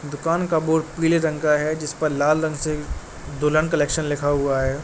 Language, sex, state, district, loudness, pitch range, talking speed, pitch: Hindi, male, Uttar Pradesh, Jalaun, -21 LUFS, 145-160 Hz, 200 wpm, 155 Hz